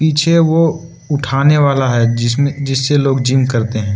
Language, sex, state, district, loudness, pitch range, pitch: Hindi, male, Arunachal Pradesh, Lower Dibang Valley, -14 LUFS, 130-150 Hz, 140 Hz